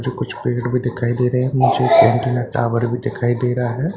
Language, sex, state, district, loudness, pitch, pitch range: Hindi, male, Bihar, Katihar, -18 LUFS, 125 Hz, 120-130 Hz